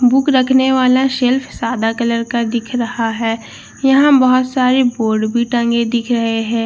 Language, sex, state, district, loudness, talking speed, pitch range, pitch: Hindi, female, Bihar, Katihar, -15 LUFS, 170 wpm, 230-255 Hz, 240 Hz